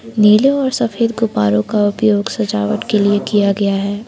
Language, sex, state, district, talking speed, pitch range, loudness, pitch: Hindi, female, Jharkhand, Palamu, 175 wpm, 200-230 Hz, -15 LUFS, 205 Hz